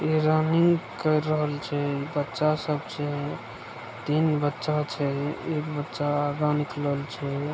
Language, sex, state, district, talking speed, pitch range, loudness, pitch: Maithili, male, Bihar, Begusarai, 125 wpm, 145-155 Hz, -27 LUFS, 150 Hz